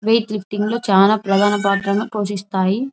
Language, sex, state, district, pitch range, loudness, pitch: Telugu, female, Andhra Pradesh, Anantapur, 200-215 Hz, -18 LUFS, 205 Hz